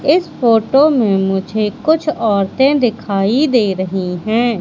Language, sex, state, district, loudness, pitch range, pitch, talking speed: Hindi, female, Madhya Pradesh, Katni, -14 LUFS, 195-270 Hz, 225 Hz, 130 wpm